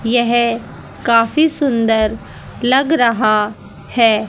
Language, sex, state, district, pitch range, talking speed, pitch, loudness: Hindi, female, Haryana, Rohtak, 225-245 Hz, 85 wpm, 230 Hz, -15 LUFS